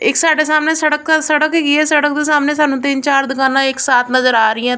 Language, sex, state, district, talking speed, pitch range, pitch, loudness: Punjabi, female, Punjab, Kapurthala, 240 wpm, 270-305 Hz, 295 Hz, -13 LUFS